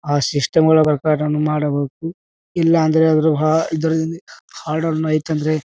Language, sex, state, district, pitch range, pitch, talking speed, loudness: Kannada, male, Karnataka, Bijapur, 150-160 Hz, 155 Hz, 125 wpm, -17 LUFS